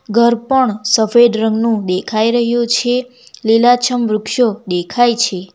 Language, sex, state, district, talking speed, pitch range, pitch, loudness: Gujarati, female, Gujarat, Valsad, 120 wpm, 215-245 Hz, 235 Hz, -14 LUFS